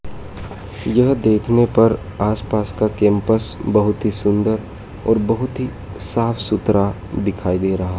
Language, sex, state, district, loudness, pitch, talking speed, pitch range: Hindi, male, Madhya Pradesh, Dhar, -18 LUFS, 105 Hz, 130 wpm, 100-110 Hz